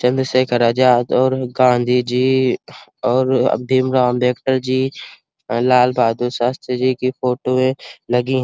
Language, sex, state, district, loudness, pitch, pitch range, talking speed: Hindi, male, Uttar Pradesh, Hamirpur, -17 LUFS, 125 Hz, 125-130 Hz, 135 wpm